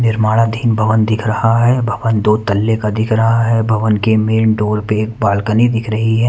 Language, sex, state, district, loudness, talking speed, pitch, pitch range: Hindi, male, Haryana, Charkhi Dadri, -14 LUFS, 210 wpm, 110 Hz, 110-115 Hz